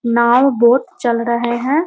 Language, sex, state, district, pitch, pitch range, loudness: Hindi, female, Bihar, Muzaffarpur, 240 Hz, 235-255 Hz, -14 LUFS